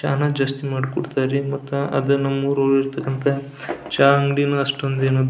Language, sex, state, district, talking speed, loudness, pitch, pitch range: Kannada, male, Karnataka, Belgaum, 180 wpm, -20 LUFS, 140 Hz, 135-140 Hz